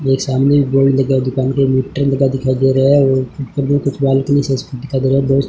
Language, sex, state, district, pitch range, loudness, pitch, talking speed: Hindi, male, Rajasthan, Bikaner, 130-140 Hz, -15 LUFS, 135 Hz, 260 wpm